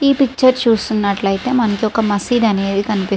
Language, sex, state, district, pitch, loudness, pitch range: Telugu, female, Andhra Pradesh, Srikakulam, 220 Hz, -16 LUFS, 200-245 Hz